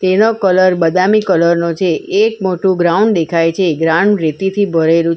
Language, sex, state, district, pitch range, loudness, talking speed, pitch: Gujarati, female, Gujarat, Valsad, 165-195 Hz, -13 LUFS, 185 wpm, 185 Hz